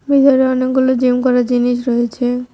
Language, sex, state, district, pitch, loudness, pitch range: Bengali, female, West Bengal, Cooch Behar, 250 Hz, -14 LUFS, 245-260 Hz